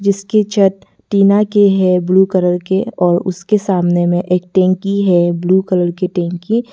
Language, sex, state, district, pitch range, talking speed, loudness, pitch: Hindi, female, Arunachal Pradesh, Lower Dibang Valley, 180-200 Hz, 160 wpm, -14 LUFS, 185 Hz